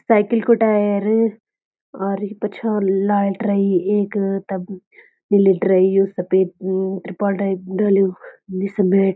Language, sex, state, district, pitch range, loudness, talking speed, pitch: Garhwali, female, Uttarakhand, Uttarkashi, 190-210 Hz, -18 LUFS, 120 wpm, 195 Hz